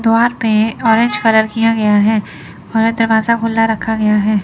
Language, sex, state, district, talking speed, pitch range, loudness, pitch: Hindi, female, Chandigarh, Chandigarh, 175 wpm, 215-225 Hz, -14 LUFS, 225 Hz